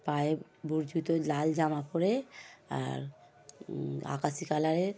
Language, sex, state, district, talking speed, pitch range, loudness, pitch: Bengali, male, West Bengal, Paschim Medinipur, 135 wpm, 140-165 Hz, -33 LUFS, 155 Hz